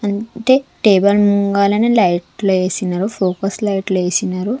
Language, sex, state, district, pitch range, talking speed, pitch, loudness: Telugu, female, Andhra Pradesh, Sri Satya Sai, 185-210 Hz, 130 wpm, 200 Hz, -15 LUFS